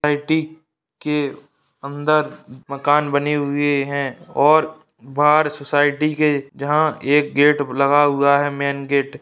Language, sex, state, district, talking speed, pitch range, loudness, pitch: Hindi, male, Bihar, Saharsa, 130 wpm, 140-150 Hz, -18 LUFS, 145 Hz